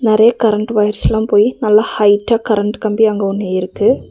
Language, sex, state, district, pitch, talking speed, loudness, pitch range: Tamil, female, Tamil Nadu, Nilgiris, 215 Hz, 160 wpm, -13 LUFS, 205-220 Hz